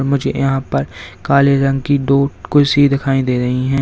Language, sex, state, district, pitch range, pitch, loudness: Hindi, male, Uttar Pradesh, Lalitpur, 130-140 Hz, 135 Hz, -15 LUFS